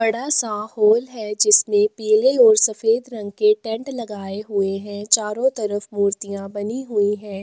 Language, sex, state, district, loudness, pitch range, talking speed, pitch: Hindi, female, Goa, North and South Goa, -19 LUFS, 205-230 Hz, 155 wpm, 215 Hz